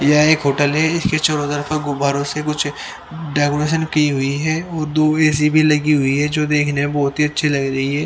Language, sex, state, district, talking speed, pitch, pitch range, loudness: Hindi, male, Haryana, Rohtak, 225 wpm, 150 Hz, 145-155 Hz, -17 LUFS